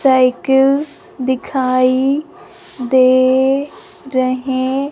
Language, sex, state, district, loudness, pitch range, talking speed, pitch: Hindi, male, Punjab, Fazilka, -15 LUFS, 255-285 Hz, 50 wpm, 265 Hz